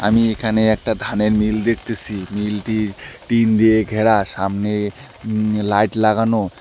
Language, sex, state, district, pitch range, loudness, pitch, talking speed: Bengali, male, West Bengal, Alipurduar, 105-110 Hz, -18 LUFS, 110 Hz, 125 wpm